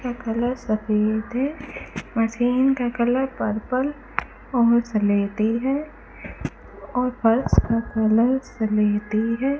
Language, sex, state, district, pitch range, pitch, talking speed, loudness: Hindi, female, Rajasthan, Bikaner, 215-255 Hz, 235 Hz, 105 wpm, -22 LUFS